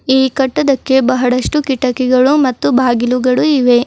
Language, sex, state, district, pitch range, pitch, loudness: Kannada, female, Karnataka, Bidar, 255-270 Hz, 260 Hz, -13 LUFS